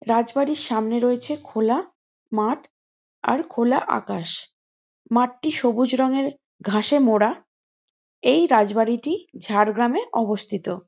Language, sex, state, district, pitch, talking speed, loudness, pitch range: Bengali, female, West Bengal, Jhargram, 245 Hz, 100 wpm, -22 LUFS, 220-280 Hz